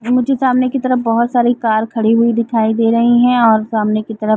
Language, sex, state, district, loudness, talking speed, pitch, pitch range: Hindi, female, Chhattisgarh, Bilaspur, -14 LUFS, 235 wpm, 230 Hz, 220-245 Hz